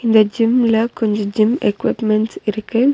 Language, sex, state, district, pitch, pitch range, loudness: Tamil, female, Tamil Nadu, Nilgiris, 220 Hz, 215-230 Hz, -17 LUFS